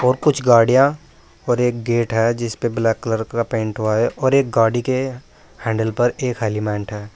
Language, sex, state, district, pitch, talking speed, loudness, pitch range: Hindi, male, Uttar Pradesh, Saharanpur, 120 Hz, 195 wpm, -19 LUFS, 110-125 Hz